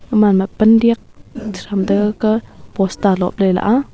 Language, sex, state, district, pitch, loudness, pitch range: Wancho, female, Arunachal Pradesh, Longding, 210 Hz, -15 LUFS, 195-225 Hz